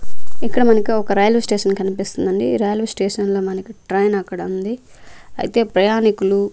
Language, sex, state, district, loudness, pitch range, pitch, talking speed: Telugu, female, Andhra Pradesh, Manyam, -18 LUFS, 195-220 Hz, 200 Hz, 140 wpm